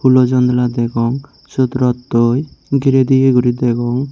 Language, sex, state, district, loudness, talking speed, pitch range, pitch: Chakma, male, Tripura, Unakoti, -14 LUFS, 130 wpm, 120-130 Hz, 125 Hz